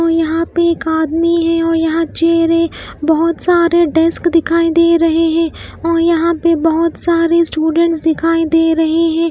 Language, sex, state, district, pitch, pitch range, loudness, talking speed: Hindi, female, Bihar, West Champaran, 330 Hz, 325-335 Hz, -13 LUFS, 175 wpm